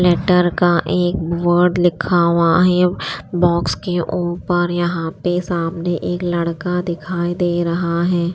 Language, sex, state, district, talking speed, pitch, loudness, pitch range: Hindi, female, Chandigarh, Chandigarh, 135 wpm, 175 Hz, -17 LUFS, 170-180 Hz